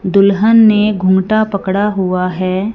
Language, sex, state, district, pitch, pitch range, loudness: Hindi, female, Punjab, Fazilka, 200 Hz, 190-210 Hz, -12 LUFS